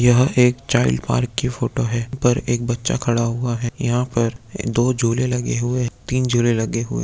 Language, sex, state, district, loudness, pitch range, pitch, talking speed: Hindi, male, Chhattisgarh, Rajnandgaon, -20 LUFS, 115-125 Hz, 120 Hz, 195 wpm